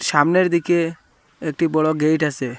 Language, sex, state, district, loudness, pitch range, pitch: Bengali, male, Assam, Hailakandi, -19 LUFS, 150-170 Hz, 155 Hz